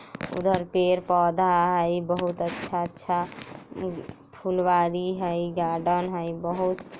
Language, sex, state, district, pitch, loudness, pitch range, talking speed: Bajjika, female, Bihar, Vaishali, 175 Hz, -26 LUFS, 175-180 Hz, 110 wpm